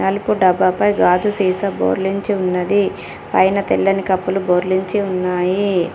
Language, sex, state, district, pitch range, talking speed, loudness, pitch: Telugu, female, Telangana, Komaram Bheem, 180-200 Hz, 120 wpm, -17 LUFS, 190 Hz